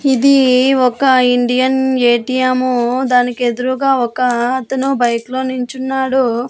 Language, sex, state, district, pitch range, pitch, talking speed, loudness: Telugu, female, Andhra Pradesh, Annamaya, 245-265 Hz, 255 Hz, 110 wpm, -14 LUFS